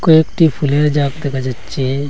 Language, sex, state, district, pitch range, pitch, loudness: Bengali, male, Assam, Hailakandi, 135-155 Hz, 145 Hz, -15 LUFS